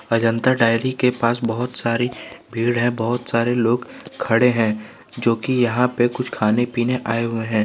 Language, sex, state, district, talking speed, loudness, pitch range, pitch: Hindi, male, Jharkhand, Garhwa, 175 wpm, -20 LUFS, 115-125 Hz, 120 Hz